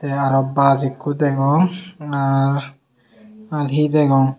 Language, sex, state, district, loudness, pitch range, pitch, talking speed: Chakma, male, Tripura, Unakoti, -18 LUFS, 135-150 Hz, 140 Hz, 110 wpm